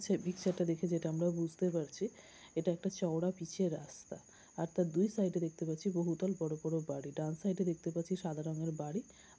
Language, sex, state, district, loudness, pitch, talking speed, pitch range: Bengali, female, West Bengal, Kolkata, -37 LUFS, 170 Hz, 190 wpm, 160-185 Hz